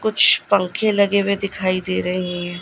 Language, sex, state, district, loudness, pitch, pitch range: Hindi, female, Gujarat, Gandhinagar, -19 LUFS, 200 Hz, 185-205 Hz